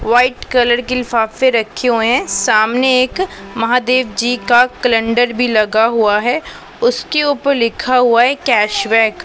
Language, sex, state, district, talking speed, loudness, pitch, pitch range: Hindi, female, Punjab, Pathankot, 155 wpm, -14 LUFS, 245 Hz, 225-255 Hz